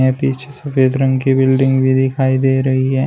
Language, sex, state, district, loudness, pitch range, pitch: Hindi, male, Uttar Pradesh, Shamli, -15 LUFS, 130-135 Hz, 130 Hz